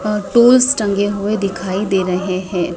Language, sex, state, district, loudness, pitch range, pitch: Hindi, female, Madhya Pradesh, Dhar, -15 LUFS, 185-210 Hz, 200 Hz